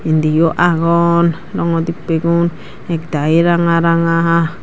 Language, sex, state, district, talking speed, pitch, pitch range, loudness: Chakma, female, Tripura, Dhalai, 105 wpm, 170 Hz, 165-170 Hz, -14 LUFS